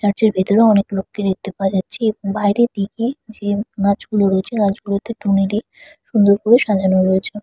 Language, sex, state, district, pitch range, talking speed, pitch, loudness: Bengali, female, West Bengal, Purulia, 195-220 Hz, 180 wpm, 205 Hz, -17 LUFS